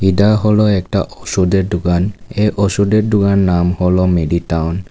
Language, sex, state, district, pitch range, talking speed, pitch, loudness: Bengali, male, Tripura, West Tripura, 90-105 Hz, 145 wpm, 95 Hz, -14 LUFS